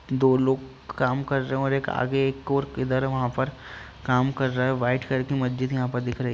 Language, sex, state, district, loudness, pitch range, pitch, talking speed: Hindi, male, Bihar, Jahanabad, -25 LUFS, 125-135 Hz, 130 Hz, 255 wpm